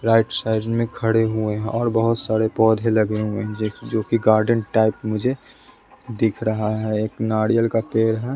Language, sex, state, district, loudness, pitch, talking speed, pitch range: Hindi, male, Bihar, West Champaran, -21 LUFS, 110 Hz, 195 wpm, 110-115 Hz